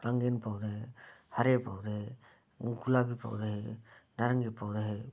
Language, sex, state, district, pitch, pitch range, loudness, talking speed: Hindi, male, Bihar, Bhagalpur, 115 Hz, 105-120 Hz, -34 LUFS, 115 wpm